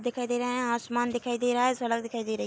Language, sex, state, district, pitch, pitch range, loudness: Hindi, female, Bihar, Darbhanga, 245 Hz, 235-245 Hz, -29 LUFS